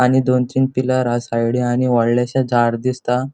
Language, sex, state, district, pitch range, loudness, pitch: Konkani, male, Goa, North and South Goa, 120-130 Hz, -17 LUFS, 125 Hz